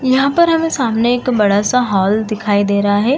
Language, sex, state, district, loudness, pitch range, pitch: Hindi, female, Uttar Pradesh, Muzaffarnagar, -14 LUFS, 205-260 Hz, 230 Hz